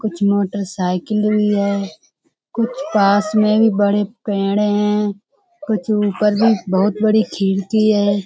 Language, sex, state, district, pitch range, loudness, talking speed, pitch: Hindi, female, Uttar Pradesh, Budaun, 200-215 Hz, -17 LUFS, 115 wpm, 210 Hz